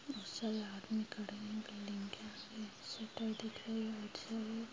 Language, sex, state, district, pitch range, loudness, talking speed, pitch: Hindi, female, Chhattisgarh, Jashpur, 210-225 Hz, -44 LUFS, 165 wpm, 220 Hz